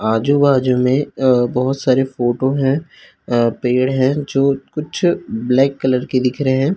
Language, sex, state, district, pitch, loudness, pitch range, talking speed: Hindi, male, Chhattisgarh, Raipur, 130 Hz, -16 LUFS, 125-140 Hz, 170 wpm